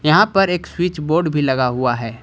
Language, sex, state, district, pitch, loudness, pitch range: Hindi, male, Jharkhand, Ranchi, 155 Hz, -17 LUFS, 125-175 Hz